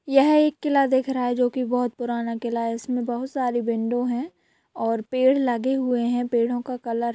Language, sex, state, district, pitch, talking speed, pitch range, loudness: Hindi, female, Bihar, Gaya, 245 Hz, 220 wpm, 235-260 Hz, -23 LUFS